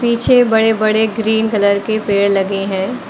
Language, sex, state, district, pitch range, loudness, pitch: Hindi, female, Uttar Pradesh, Lucknow, 200-225 Hz, -14 LUFS, 220 Hz